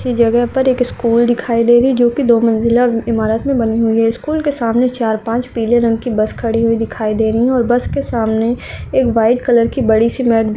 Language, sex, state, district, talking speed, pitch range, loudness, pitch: Hindi, male, Chhattisgarh, Balrampur, 245 wpm, 225-245 Hz, -14 LUFS, 235 Hz